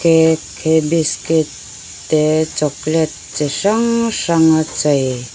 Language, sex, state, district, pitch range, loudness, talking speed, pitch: Mizo, female, Mizoram, Aizawl, 150-160 Hz, -16 LUFS, 110 wpm, 155 Hz